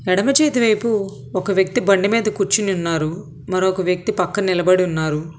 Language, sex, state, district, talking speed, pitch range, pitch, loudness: Telugu, female, Telangana, Hyderabad, 155 wpm, 175-210 Hz, 190 Hz, -18 LUFS